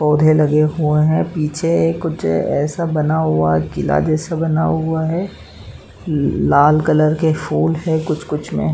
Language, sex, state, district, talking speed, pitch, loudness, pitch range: Hindi, male, Uttar Pradesh, Muzaffarnagar, 150 wpm, 155 Hz, -16 LUFS, 145-160 Hz